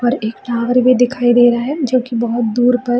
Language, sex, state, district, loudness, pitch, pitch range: Hindi, female, Bihar, Jamui, -15 LUFS, 245 Hz, 235-250 Hz